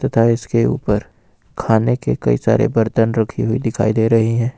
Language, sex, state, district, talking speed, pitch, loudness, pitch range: Hindi, male, Jharkhand, Ranchi, 185 wpm, 115 Hz, -17 LUFS, 110-115 Hz